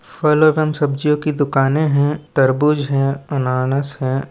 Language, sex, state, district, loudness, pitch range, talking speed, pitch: Hindi, male, Chhattisgarh, Balrampur, -17 LUFS, 135-150 Hz, 140 wpm, 145 Hz